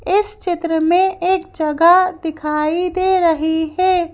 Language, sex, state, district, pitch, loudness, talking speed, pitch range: Hindi, female, Madhya Pradesh, Bhopal, 350 Hz, -16 LUFS, 130 wpm, 320-370 Hz